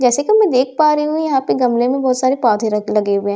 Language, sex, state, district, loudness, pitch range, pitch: Hindi, female, Bihar, Katihar, -15 LUFS, 225-300 Hz, 255 Hz